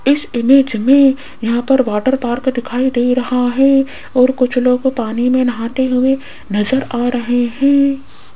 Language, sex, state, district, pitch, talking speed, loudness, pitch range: Hindi, female, Rajasthan, Jaipur, 255 Hz, 160 wpm, -14 LUFS, 245-270 Hz